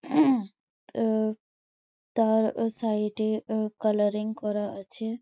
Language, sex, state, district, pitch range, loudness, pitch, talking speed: Bengali, female, West Bengal, Malda, 215-225 Hz, -27 LUFS, 220 Hz, 105 wpm